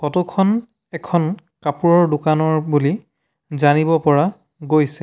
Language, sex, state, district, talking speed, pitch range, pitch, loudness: Assamese, male, Assam, Sonitpur, 105 wpm, 150-180 Hz, 160 Hz, -18 LUFS